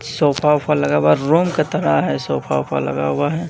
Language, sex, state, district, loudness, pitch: Hindi, male, Bihar, Katihar, -17 LUFS, 135 Hz